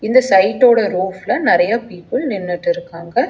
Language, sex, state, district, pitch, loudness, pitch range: Tamil, female, Tamil Nadu, Chennai, 215 Hz, -16 LUFS, 180-255 Hz